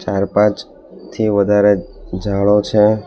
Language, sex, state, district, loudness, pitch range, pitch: Gujarati, male, Gujarat, Valsad, -15 LUFS, 100-105 Hz, 105 Hz